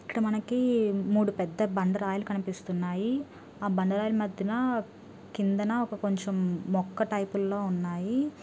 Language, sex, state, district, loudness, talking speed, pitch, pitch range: Telugu, female, Andhra Pradesh, Srikakulam, -29 LUFS, 130 wpm, 205 Hz, 195-215 Hz